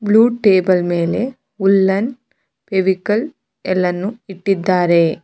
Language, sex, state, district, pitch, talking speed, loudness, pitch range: Kannada, female, Karnataka, Bangalore, 195 Hz, 80 wpm, -16 LUFS, 185-225 Hz